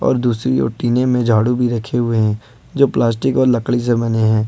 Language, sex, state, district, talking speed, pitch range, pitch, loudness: Hindi, male, Jharkhand, Ranchi, 225 wpm, 110-125 Hz, 120 Hz, -16 LUFS